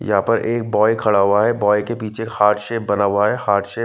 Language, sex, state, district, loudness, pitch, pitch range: Hindi, male, Himachal Pradesh, Shimla, -18 LUFS, 105 Hz, 105-115 Hz